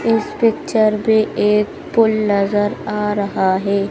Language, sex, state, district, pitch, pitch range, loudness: Hindi, male, Madhya Pradesh, Bhopal, 210 Hz, 205-220 Hz, -17 LUFS